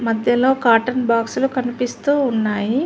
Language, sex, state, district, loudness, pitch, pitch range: Telugu, female, Telangana, Mahabubabad, -18 LUFS, 245 Hz, 230-260 Hz